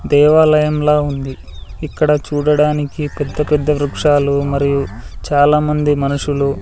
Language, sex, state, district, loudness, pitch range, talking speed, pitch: Telugu, male, Andhra Pradesh, Sri Satya Sai, -15 LUFS, 140-150 Hz, 100 wpm, 145 Hz